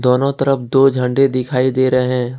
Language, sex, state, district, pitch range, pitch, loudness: Hindi, male, Jharkhand, Ranchi, 125-135 Hz, 130 Hz, -15 LUFS